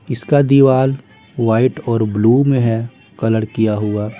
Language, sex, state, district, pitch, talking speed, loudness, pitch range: Hindi, male, Bihar, Patna, 115 Hz, 145 wpm, -15 LUFS, 110-130 Hz